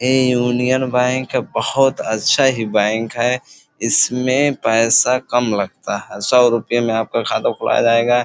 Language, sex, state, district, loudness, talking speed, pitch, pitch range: Bhojpuri, male, Uttar Pradesh, Gorakhpur, -16 LUFS, 155 wpm, 120 Hz, 115-130 Hz